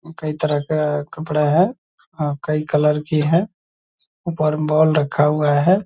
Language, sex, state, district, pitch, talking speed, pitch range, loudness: Hindi, male, Bihar, Purnia, 155 Hz, 165 wpm, 150-165 Hz, -19 LUFS